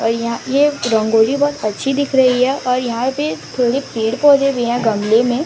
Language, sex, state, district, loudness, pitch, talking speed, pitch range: Hindi, female, Odisha, Sambalpur, -16 LUFS, 245 Hz, 210 wpm, 225-275 Hz